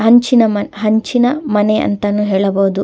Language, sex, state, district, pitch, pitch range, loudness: Kannada, female, Karnataka, Dakshina Kannada, 210 Hz, 205-230 Hz, -14 LUFS